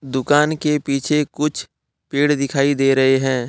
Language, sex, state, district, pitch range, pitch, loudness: Hindi, male, Jharkhand, Deoghar, 135-150 Hz, 140 Hz, -18 LUFS